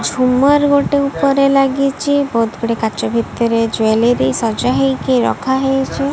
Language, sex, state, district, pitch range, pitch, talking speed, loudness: Odia, female, Odisha, Malkangiri, 230-275 Hz, 265 Hz, 115 wpm, -15 LUFS